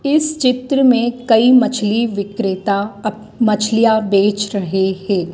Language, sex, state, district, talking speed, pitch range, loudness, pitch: Hindi, female, Madhya Pradesh, Dhar, 125 wpm, 200-245 Hz, -15 LUFS, 215 Hz